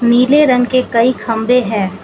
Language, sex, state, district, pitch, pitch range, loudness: Hindi, female, Manipur, Imphal West, 245 Hz, 230-255 Hz, -13 LUFS